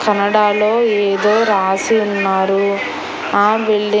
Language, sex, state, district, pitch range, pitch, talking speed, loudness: Telugu, female, Andhra Pradesh, Annamaya, 200-215 Hz, 210 Hz, 105 wpm, -15 LUFS